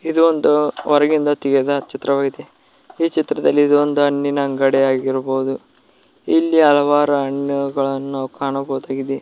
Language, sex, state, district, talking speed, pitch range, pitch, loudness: Kannada, male, Karnataka, Koppal, 105 wpm, 135-145 Hz, 140 Hz, -17 LUFS